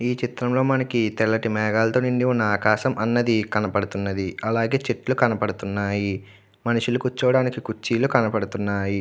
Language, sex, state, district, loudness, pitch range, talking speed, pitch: Telugu, male, Andhra Pradesh, Chittoor, -23 LUFS, 105-125 Hz, 115 wpm, 110 Hz